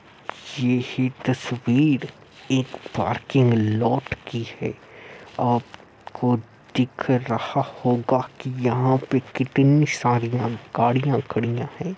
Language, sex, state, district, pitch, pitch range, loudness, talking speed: Hindi, male, Uttar Pradesh, Muzaffarnagar, 125 Hz, 120-130 Hz, -23 LUFS, 100 wpm